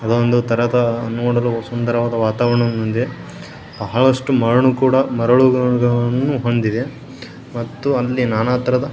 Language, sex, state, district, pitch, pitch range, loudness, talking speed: Kannada, male, Karnataka, Bijapur, 120 Hz, 115-130 Hz, -17 LUFS, 65 wpm